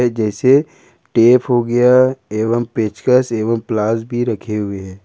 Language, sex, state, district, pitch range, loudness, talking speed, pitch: Hindi, male, Jharkhand, Ranchi, 110-125 Hz, -15 LUFS, 145 wpm, 115 Hz